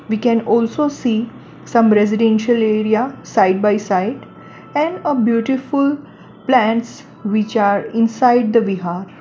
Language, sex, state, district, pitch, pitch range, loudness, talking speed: English, female, Gujarat, Valsad, 230 Hz, 215-245 Hz, -16 LUFS, 125 wpm